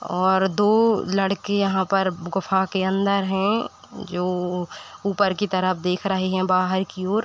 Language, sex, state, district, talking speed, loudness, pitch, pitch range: Hindi, female, Uttar Pradesh, Deoria, 155 wpm, -22 LUFS, 190 Hz, 185-200 Hz